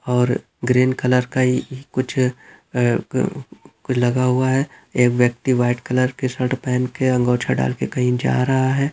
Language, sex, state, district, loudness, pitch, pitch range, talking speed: Hindi, male, Chhattisgarh, Bilaspur, -20 LUFS, 125 Hz, 125-130 Hz, 175 wpm